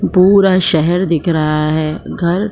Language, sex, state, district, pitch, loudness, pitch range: Hindi, female, Jharkhand, Sahebganj, 170 Hz, -13 LUFS, 155-185 Hz